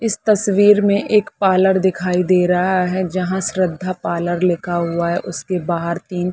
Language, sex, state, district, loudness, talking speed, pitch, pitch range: Hindi, female, Chhattisgarh, Bilaspur, -17 LUFS, 170 wpm, 185 Hz, 175-190 Hz